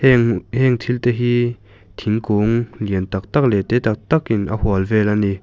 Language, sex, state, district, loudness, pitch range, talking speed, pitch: Mizo, male, Mizoram, Aizawl, -18 LUFS, 100-120 Hz, 200 wpm, 110 Hz